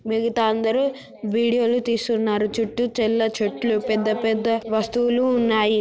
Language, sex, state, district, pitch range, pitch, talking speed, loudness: Telugu, female, Telangana, Nalgonda, 220-235 Hz, 225 Hz, 115 wpm, -21 LUFS